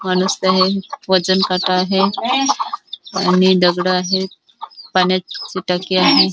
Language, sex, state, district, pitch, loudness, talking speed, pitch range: Marathi, female, Maharashtra, Dhule, 185 Hz, -16 LUFS, 85 wpm, 185-190 Hz